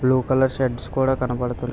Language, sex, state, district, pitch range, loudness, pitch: Telugu, male, Andhra Pradesh, Visakhapatnam, 125-130 Hz, -22 LUFS, 130 Hz